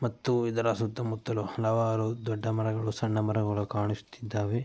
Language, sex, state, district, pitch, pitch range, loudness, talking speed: Kannada, male, Karnataka, Mysore, 110 Hz, 110-115 Hz, -30 LUFS, 130 wpm